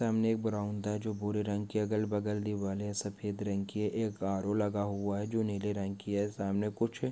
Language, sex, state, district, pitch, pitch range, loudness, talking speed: Hindi, male, Uttarakhand, Tehri Garhwal, 105 Hz, 100-105 Hz, -34 LUFS, 235 wpm